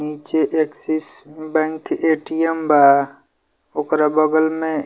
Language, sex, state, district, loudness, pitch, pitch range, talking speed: Bhojpuri, male, Bihar, Muzaffarpur, -18 LUFS, 155 Hz, 150-160 Hz, 110 wpm